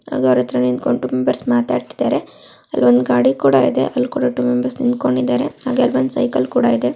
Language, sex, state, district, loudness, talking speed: Kannada, female, Karnataka, Shimoga, -17 LUFS, 175 wpm